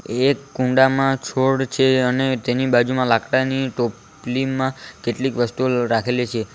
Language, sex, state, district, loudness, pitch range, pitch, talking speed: Gujarati, male, Gujarat, Valsad, -20 LUFS, 120-135 Hz, 130 Hz, 120 wpm